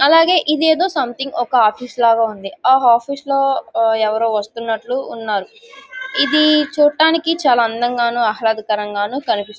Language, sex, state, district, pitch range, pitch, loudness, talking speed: Telugu, female, Andhra Pradesh, Guntur, 225-295 Hz, 250 Hz, -16 LUFS, 120 wpm